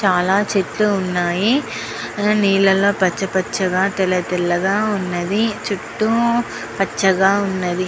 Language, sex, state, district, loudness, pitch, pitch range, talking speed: Telugu, female, Andhra Pradesh, Guntur, -18 LUFS, 195 Hz, 185-205 Hz, 105 wpm